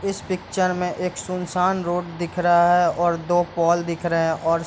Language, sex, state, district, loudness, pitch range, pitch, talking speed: Hindi, male, Bihar, East Champaran, -21 LUFS, 170-180 Hz, 175 Hz, 220 wpm